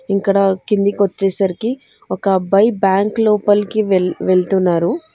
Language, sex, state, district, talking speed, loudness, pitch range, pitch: Telugu, female, Telangana, Hyderabad, 95 wpm, -16 LUFS, 190-210 Hz, 200 Hz